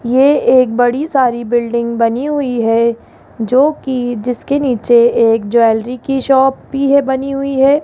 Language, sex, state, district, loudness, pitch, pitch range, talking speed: Hindi, female, Rajasthan, Jaipur, -13 LUFS, 250 Hz, 235-275 Hz, 160 wpm